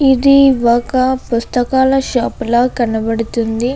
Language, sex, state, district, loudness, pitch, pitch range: Telugu, female, Andhra Pradesh, Anantapur, -14 LUFS, 245 Hz, 235-265 Hz